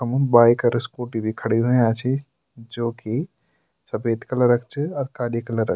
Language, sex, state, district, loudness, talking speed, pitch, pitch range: Garhwali, male, Uttarakhand, Tehri Garhwal, -22 LUFS, 175 wpm, 120 Hz, 115-130 Hz